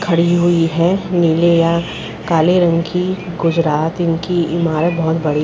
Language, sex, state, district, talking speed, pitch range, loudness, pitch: Hindi, female, Chhattisgarh, Rajnandgaon, 155 wpm, 165-175 Hz, -15 LUFS, 170 Hz